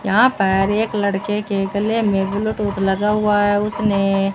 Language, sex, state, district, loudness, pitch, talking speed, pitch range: Hindi, female, Rajasthan, Bikaner, -18 LUFS, 205 Hz, 180 wpm, 195-210 Hz